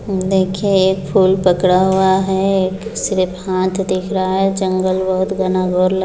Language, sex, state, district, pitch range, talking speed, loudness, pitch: Hindi, female, Bihar, Muzaffarpur, 185-190 Hz, 170 wpm, -16 LUFS, 190 Hz